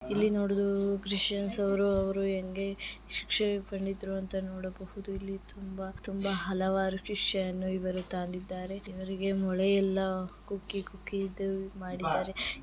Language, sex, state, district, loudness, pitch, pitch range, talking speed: Kannada, female, Karnataka, Shimoga, -32 LUFS, 195 Hz, 190-200 Hz, 100 wpm